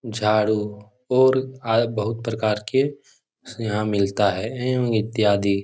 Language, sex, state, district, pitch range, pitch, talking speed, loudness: Hindi, male, Bihar, Jahanabad, 105-125 Hz, 110 Hz, 130 wpm, -22 LUFS